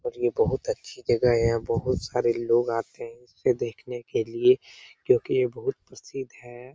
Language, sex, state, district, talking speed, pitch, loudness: Hindi, male, Bihar, Lakhisarai, 205 wpm, 125 Hz, -26 LUFS